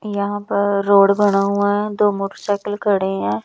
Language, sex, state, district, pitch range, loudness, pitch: Hindi, female, Bihar, West Champaran, 200-205 Hz, -18 LUFS, 200 Hz